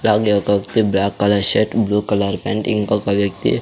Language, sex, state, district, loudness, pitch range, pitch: Telugu, male, Andhra Pradesh, Sri Satya Sai, -17 LUFS, 100-105 Hz, 100 Hz